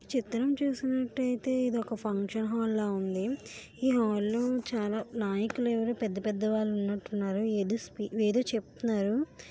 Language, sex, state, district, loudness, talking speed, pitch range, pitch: Telugu, female, Andhra Pradesh, Visakhapatnam, -31 LUFS, 120 wpm, 210-250 Hz, 225 Hz